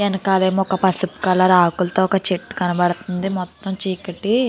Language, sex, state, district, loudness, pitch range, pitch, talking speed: Telugu, female, Andhra Pradesh, Chittoor, -19 LUFS, 180-195 Hz, 185 Hz, 145 wpm